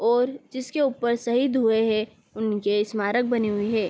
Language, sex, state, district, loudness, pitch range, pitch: Hindi, female, Jharkhand, Sahebganj, -24 LUFS, 215-245 Hz, 225 Hz